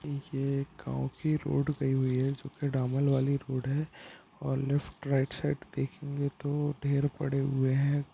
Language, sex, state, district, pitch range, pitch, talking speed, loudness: Hindi, male, Uttarakhand, Tehri Garhwal, 135-145 Hz, 140 Hz, 170 wpm, -31 LUFS